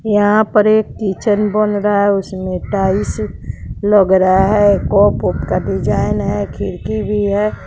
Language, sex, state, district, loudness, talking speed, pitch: Hindi, female, Bihar, West Champaran, -15 LUFS, 140 wpm, 200 Hz